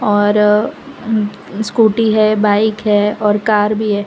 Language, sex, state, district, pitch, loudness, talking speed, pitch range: Hindi, female, Gujarat, Valsad, 210 Hz, -14 LUFS, 135 wpm, 205-215 Hz